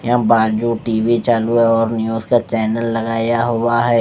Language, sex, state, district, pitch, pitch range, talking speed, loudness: Hindi, male, Punjab, Fazilka, 115 Hz, 115-120 Hz, 180 wpm, -16 LUFS